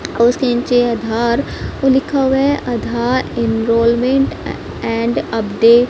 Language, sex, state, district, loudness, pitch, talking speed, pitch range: Hindi, male, Haryana, Charkhi Dadri, -16 LUFS, 240 Hz, 100 wpm, 230-260 Hz